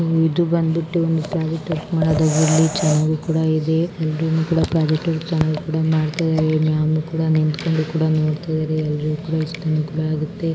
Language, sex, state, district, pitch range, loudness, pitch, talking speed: Kannada, female, Karnataka, Raichur, 155-160 Hz, -20 LUFS, 160 Hz, 100 wpm